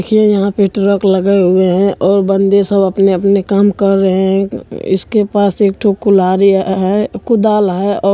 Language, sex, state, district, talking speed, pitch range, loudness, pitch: Hindi, male, Bihar, Araria, 190 wpm, 190-205 Hz, -12 LUFS, 195 Hz